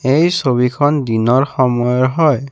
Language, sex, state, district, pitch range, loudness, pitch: Assamese, male, Assam, Kamrup Metropolitan, 125-145 Hz, -14 LUFS, 130 Hz